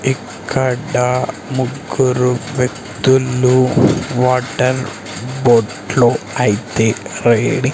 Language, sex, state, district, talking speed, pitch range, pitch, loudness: Telugu, male, Andhra Pradesh, Sri Satya Sai, 60 wpm, 125-130 Hz, 125 Hz, -16 LUFS